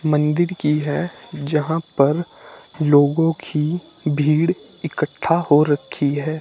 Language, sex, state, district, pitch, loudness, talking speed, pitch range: Hindi, male, Himachal Pradesh, Shimla, 155 Hz, -20 LUFS, 110 wpm, 150-165 Hz